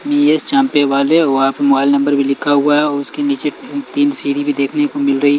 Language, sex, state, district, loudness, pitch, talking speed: Hindi, male, Chhattisgarh, Raipur, -14 LUFS, 145 Hz, 225 wpm